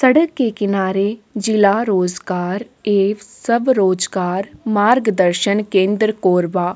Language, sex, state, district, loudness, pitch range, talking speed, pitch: Hindi, female, Chhattisgarh, Korba, -17 LUFS, 185-220 Hz, 95 wpm, 200 Hz